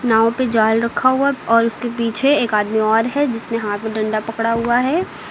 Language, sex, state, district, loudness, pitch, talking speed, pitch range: Hindi, female, Uttar Pradesh, Lucknow, -17 LUFS, 230 Hz, 215 wpm, 220-255 Hz